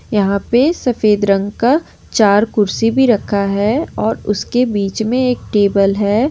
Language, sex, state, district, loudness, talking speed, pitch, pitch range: Hindi, female, Jharkhand, Ranchi, -15 LUFS, 160 wpm, 210 Hz, 200-240 Hz